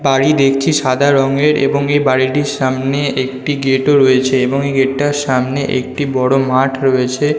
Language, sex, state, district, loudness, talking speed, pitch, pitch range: Bengali, male, West Bengal, North 24 Parganas, -14 LUFS, 180 wpm, 135 Hz, 130-140 Hz